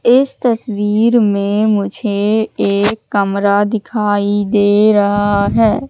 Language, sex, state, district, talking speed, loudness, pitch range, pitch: Hindi, female, Madhya Pradesh, Katni, 100 wpm, -14 LUFS, 205-220 Hz, 210 Hz